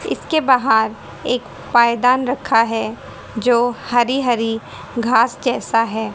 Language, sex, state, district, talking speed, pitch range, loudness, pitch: Hindi, female, Haryana, Jhajjar, 115 wpm, 225-250 Hz, -17 LUFS, 235 Hz